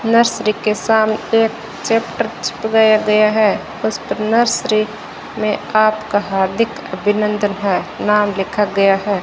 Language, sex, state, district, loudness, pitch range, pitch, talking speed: Hindi, female, Rajasthan, Bikaner, -16 LUFS, 205-220 Hz, 215 Hz, 125 wpm